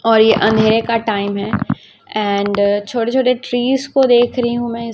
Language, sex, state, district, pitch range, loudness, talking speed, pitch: Hindi, female, Chhattisgarh, Raipur, 210-245 Hz, -15 LUFS, 180 wpm, 230 Hz